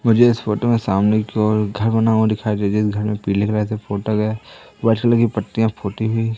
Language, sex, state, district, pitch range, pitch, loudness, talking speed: Hindi, male, Madhya Pradesh, Katni, 105-115 Hz, 110 Hz, -18 LUFS, 255 wpm